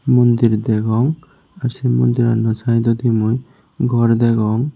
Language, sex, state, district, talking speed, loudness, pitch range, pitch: Chakma, male, Tripura, Unakoti, 115 wpm, -16 LUFS, 115-125 Hz, 120 Hz